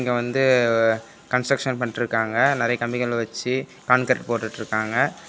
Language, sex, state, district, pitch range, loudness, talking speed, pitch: Tamil, male, Tamil Nadu, Namakkal, 115-125 Hz, -22 LUFS, 100 wpm, 120 Hz